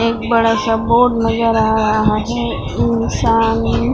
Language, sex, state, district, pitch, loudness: Hindi, female, Maharashtra, Mumbai Suburban, 215 Hz, -15 LUFS